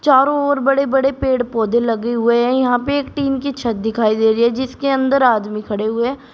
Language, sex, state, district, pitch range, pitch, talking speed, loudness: Hindi, female, Uttar Pradesh, Shamli, 230-275 Hz, 250 Hz, 225 wpm, -17 LUFS